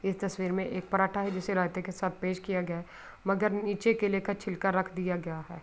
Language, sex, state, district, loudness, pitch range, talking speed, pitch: Urdu, female, Andhra Pradesh, Anantapur, -31 LUFS, 185-200 Hz, 255 wpm, 190 Hz